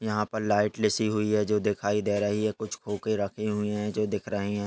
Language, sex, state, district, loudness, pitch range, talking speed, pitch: Hindi, male, Maharashtra, Sindhudurg, -28 LUFS, 105-110 Hz, 245 wpm, 105 Hz